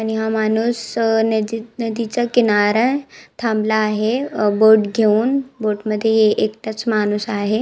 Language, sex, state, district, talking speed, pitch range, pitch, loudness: Marathi, female, Maharashtra, Nagpur, 135 wpm, 215-230 Hz, 220 Hz, -18 LUFS